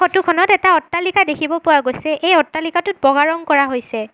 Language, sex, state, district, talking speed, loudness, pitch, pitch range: Assamese, female, Assam, Sonitpur, 190 wpm, -15 LUFS, 320 Hz, 290-350 Hz